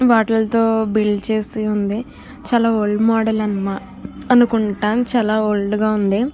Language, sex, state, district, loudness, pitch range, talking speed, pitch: Telugu, female, Andhra Pradesh, Krishna, -18 LUFS, 210-225 Hz, 115 wpm, 215 Hz